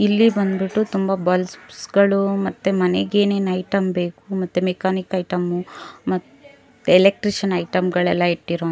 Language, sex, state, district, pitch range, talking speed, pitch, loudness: Kannada, female, Karnataka, Bangalore, 180-195 Hz, 135 wpm, 190 Hz, -20 LUFS